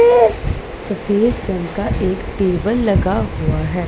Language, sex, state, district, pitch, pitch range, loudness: Hindi, female, Punjab, Pathankot, 205 Hz, 190-225 Hz, -18 LUFS